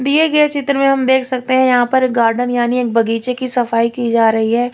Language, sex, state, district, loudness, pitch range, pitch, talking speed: Hindi, female, Chandigarh, Chandigarh, -14 LUFS, 235-260 Hz, 250 Hz, 255 wpm